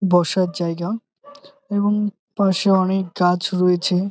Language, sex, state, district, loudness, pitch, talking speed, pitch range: Bengali, male, West Bengal, Jalpaiguri, -20 LUFS, 190 Hz, 115 wpm, 180-205 Hz